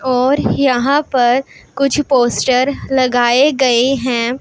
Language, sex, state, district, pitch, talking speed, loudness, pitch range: Hindi, female, Punjab, Pathankot, 260 Hz, 110 wpm, -14 LUFS, 245-275 Hz